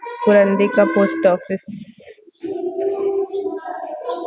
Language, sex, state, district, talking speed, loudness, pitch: Hindi, female, Chhattisgarh, Bastar, 70 wpm, -19 LUFS, 340 Hz